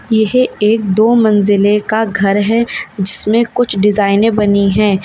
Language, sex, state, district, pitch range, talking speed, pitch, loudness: Hindi, female, Uttar Pradesh, Lalitpur, 200-225 Hz, 145 wpm, 210 Hz, -12 LUFS